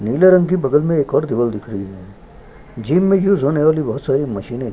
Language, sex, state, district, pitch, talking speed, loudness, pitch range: Hindi, male, Chhattisgarh, Sukma, 135 Hz, 255 wpm, -16 LUFS, 105-165 Hz